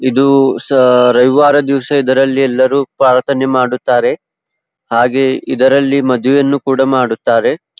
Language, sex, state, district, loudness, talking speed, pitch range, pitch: Kannada, female, Karnataka, Belgaum, -11 LUFS, 100 wpm, 125-140 Hz, 135 Hz